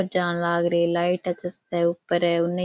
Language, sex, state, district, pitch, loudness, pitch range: Rajasthani, female, Rajasthan, Churu, 175 Hz, -24 LUFS, 170-180 Hz